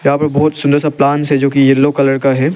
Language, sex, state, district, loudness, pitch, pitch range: Hindi, male, Arunachal Pradesh, Lower Dibang Valley, -12 LUFS, 140 Hz, 140-145 Hz